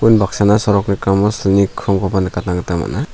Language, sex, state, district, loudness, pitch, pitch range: Garo, male, Meghalaya, South Garo Hills, -15 LUFS, 100 Hz, 95-105 Hz